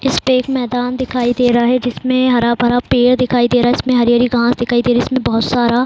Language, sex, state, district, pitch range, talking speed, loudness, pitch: Hindi, female, Bihar, Saran, 240-255 Hz, 255 wpm, -14 LUFS, 245 Hz